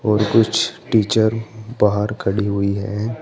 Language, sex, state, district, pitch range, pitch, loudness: Hindi, male, Uttar Pradesh, Saharanpur, 105-110 Hz, 105 Hz, -19 LUFS